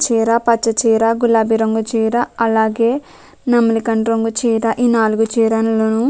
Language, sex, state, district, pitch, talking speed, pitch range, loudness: Telugu, female, Telangana, Nalgonda, 225 Hz, 100 wpm, 225-235 Hz, -15 LUFS